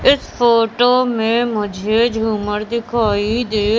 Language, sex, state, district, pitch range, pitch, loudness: Hindi, female, Madhya Pradesh, Katni, 215-240 Hz, 225 Hz, -16 LUFS